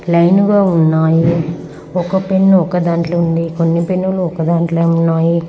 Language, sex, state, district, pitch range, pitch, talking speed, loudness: Telugu, female, Andhra Pradesh, Guntur, 165-185 Hz, 170 Hz, 140 wpm, -14 LUFS